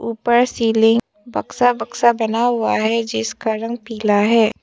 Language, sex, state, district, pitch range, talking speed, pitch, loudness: Hindi, female, Arunachal Pradesh, Papum Pare, 220-235 Hz, 145 wpm, 225 Hz, -18 LUFS